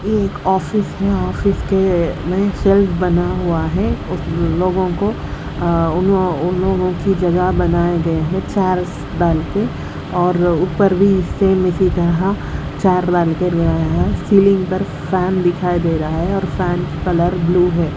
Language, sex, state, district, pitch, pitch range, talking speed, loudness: Hindi, female, Haryana, Rohtak, 180 Hz, 170-190 Hz, 125 wpm, -17 LUFS